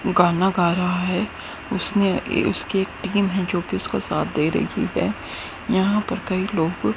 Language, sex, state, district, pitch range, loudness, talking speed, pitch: Hindi, female, Haryana, Jhajjar, 180-195 Hz, -22 LUFS, 170 wpm, 190 Hz